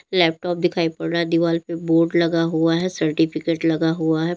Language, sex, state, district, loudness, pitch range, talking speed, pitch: Hindi, female, Uttar Pradesh, Lalitpur, -20 LUFS, 160-170 Hz, 205 wpm, 165 Hz